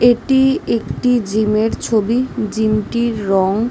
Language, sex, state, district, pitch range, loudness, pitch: Bengali, female, West Bengal, Jhargram, 215-245 Hz, -16 LUFS, 225 Hz